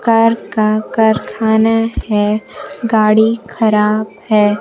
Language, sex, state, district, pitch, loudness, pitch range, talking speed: Hindi, female, Bihar, Kaimur, 220 Hz, -14 LUFS, 215-225 Hz, 90 wpm